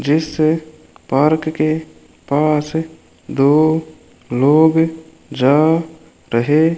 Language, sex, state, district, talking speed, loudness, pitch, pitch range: Hindi, male, Rajasthan, Bikaner, 80 wpm, -16 LUFS, 155 Hz, 150-160 Hz